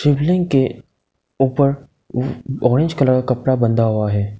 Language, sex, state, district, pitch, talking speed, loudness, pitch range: Hindi, male, Arunachal Pradesh, Lower Dibang Valley, 130 Hz, 125 wpm, -18 LUFS, 120-140 Hz